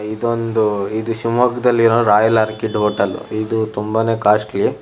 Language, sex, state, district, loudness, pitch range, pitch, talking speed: Kannada, male, Karnataka, Shimoga, -17 LUFS, 105-115 Hz, 110 Hz, 125 wpm